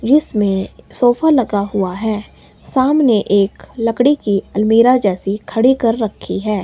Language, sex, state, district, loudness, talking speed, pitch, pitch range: Hindi, female, Himachal Pradesh, Shimla, -15 LUFS, 135 wpm, 220 Hz, 205-250 Hz